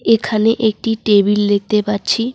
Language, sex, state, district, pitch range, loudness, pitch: Bengali, female, West Bengal, Cooch Behar, 205-225 Hz, -15 LUFS, 215 Hz